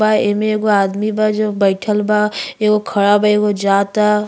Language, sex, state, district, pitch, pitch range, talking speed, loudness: Bhojpuri, female, Uttar Pradesh, Ghazipur, 210 Hz, 205-215 Hz, 180 wpm, -15 LUFS